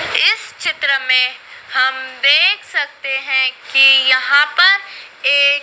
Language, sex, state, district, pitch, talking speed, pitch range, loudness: Hindi, female, Madhya Pradesh, Dhar, 275 Hz, 115 wpm, 260-290 Hz, -13 LUFS